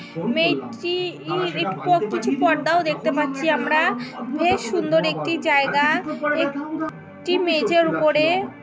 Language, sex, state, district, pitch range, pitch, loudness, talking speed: Bengali, female, West Bengal, Paschim Medinipur, 295-340 Hz, 315 Hz, -21 LUFS, 105 wpm